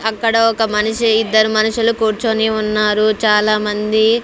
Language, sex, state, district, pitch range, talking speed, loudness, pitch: Telugu, female, Andhra Pradesh, Sri Satya Sai, 215-225 Hz, 125 wpm, -15 LUFS, 220 Hz